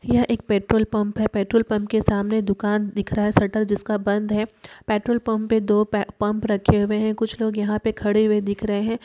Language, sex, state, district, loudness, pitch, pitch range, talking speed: Hindi, female, Bihar, Darbhanga, -22 LUFS, 210 Hz, 210-220 Hz, 225 wpm